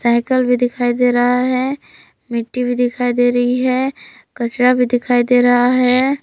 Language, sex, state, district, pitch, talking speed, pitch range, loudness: Hindi, female, Jharkhand, Palamu, 245 Hz, 175 wpm, 245-255 Hz, -15 LUFS